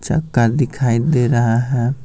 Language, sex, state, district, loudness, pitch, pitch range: Hindi, male, Bihar, Patna, -16 LUFS, 125 Hz, 120-140 Hz